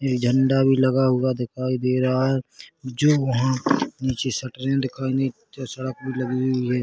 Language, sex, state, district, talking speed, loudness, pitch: Hindi, male, Chhattisgarh, Korba, 165 wpm, -22 LUFS, 130 Hz